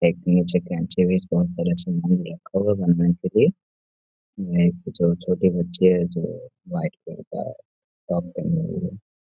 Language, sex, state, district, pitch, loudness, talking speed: Hindi, male, Bihar, Gaya, 95 Hz, -23 LUFS, 175 wpm